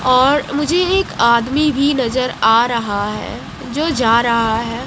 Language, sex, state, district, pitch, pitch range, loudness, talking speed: Hindi, female, Odisha, Malkangiri, 250 Hz, 230-290 Hz, -15 LUFS, 160 wpm